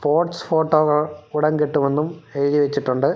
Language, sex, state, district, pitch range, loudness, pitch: Malayalam, male, Kerala, Thiruvananthapuram, 145-155 Hz, -20 LUFS, 150 Hz